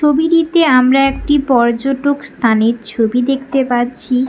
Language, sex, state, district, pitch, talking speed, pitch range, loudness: Bengali, female, West Bengal, Paschim Medinipur, 265 Hz, 110 wpm, 240-285 Hz, -14 LUFS